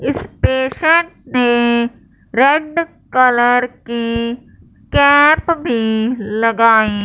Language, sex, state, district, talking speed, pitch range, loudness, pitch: Hindi, male, Punjab, Fazilka, 75 wpm, 230-285 Hz, -14 LUFS, 245 Hz